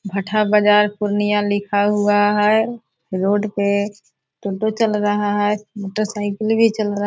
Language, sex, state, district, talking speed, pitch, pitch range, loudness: Hindi, female, Bihar, Purnia, 155 wpm, 205 Hz, 205-215 Hz, -18 LUFS